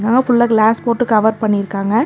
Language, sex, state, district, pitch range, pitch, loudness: Tamil, female, Tamil Nadu, Nilgiris, 215-240 Hz, 220 Hz, -14 LUFS